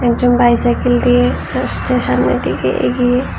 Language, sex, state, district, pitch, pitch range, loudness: Bengali, female, Tripura, West Tripura, 245 Hz, 240-245 Hz, -14 LUFS